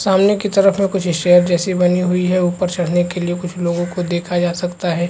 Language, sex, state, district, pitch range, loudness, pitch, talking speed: Hindi, male, Chhattisgarh, Bastar, 175-185 Hz, -16 LUFS, 180 Hz, 245 wpm